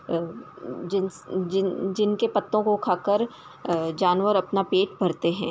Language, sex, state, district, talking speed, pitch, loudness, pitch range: Hindi, female, Uttar Pradesh, Ghazipur, 140 wpm, 190 Hz, -25 LUFS, 180-205 Hz